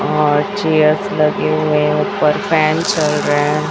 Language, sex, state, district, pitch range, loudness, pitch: Hindi, female, Chhattisgarh, Raipur, 150-160 Hz, -15 LUFS, 155 Hz